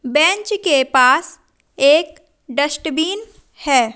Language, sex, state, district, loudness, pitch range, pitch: Hindi, female, Madhya Pradesh, Umaria, -16 LUFS, 275-340 Hz, 305 Hz